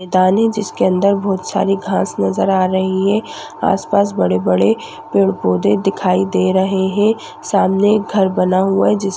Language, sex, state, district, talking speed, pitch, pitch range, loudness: Hindi, female, Uttarakhand, Tehri Garhwal, 185 wpm, 190 Hz, 185-200 Hz, -15 LUFS